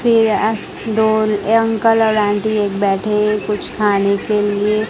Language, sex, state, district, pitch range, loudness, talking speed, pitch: Hindi, female, Gujarat, Gandhinagar, 205-220 Hz, -16 LUFS, 145 wpm, 210 Hz